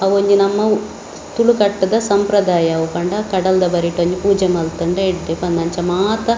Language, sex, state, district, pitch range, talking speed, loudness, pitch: Tulu, female, Karnataka, Dakshina Kannada, 175-205 Hz, 140 wpm, -16 LUFS, 190 Hz